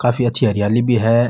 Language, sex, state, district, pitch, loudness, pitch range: Marwari, male, Rajasthan, Nagaur, 120 Hz, -16 LUFS, 115-120 Hz